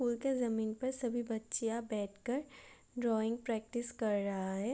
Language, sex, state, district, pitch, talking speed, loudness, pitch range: Hindi, female, Bihar, Gopalganj, 230 Hz, 165 wpm, -37 LUFS, 220-245 Hz